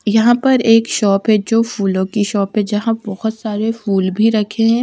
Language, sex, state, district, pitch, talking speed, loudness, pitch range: Hindi, female, Punjab, Kapurthala, 215 Hz, 210 wpm, -15 LUFS, 205-225 Hz